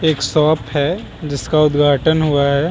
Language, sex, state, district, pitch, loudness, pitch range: Hindi, male, Bihar, Vaishali, 150 Hz, -16 LUFS, 140-160 Hz